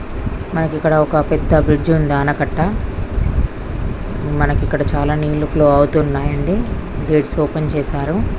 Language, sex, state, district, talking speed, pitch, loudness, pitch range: Telugu, female, Andhra Pradesh, Krishna, 130 wpm, 145 Hz, -17 LUFS, 135-155 Hz